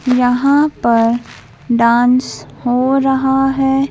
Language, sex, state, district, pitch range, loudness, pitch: Hindi, female, Madhya Pradesh, Bhopal, 245-270 Hz, -14 LUFS, 255 Hz